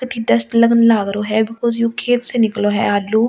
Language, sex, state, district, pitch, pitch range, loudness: Hindi, female, Delhi, New Delhi, 230 Hz, 215-235 Hz, -16 LUFS